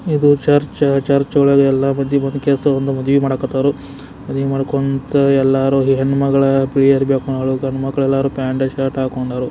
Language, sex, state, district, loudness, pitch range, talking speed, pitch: Kannada, male, Karnataka, Belgaum, -16 LUFS, 135-140 Hz, 150 wpm, 135 Hz